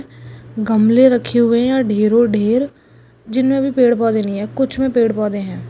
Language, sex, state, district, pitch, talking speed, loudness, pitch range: Hindi, female, Goa, North and South Goa, 230 Hz, 180 wpm, -15 LUFS, 210-255 Hz